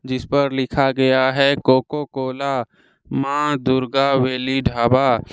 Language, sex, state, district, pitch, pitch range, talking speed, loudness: Hindi, male, Jharkhand, Deoghar, 135 Hz, 130-140 Hz, 125 wpm, -19 LUFS